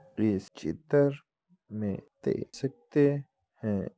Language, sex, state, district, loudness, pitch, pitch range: Hindi, male, Uttar Pradesh, Muzaffarnagar, -30 LUFS, 125 Hz, 100-145 Hz